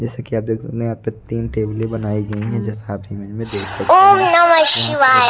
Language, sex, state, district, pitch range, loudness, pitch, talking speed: Hindi, male, Odisha, Nuapada, 105-150 Hz, -14 LUFS, 115 Hz, 250 wpm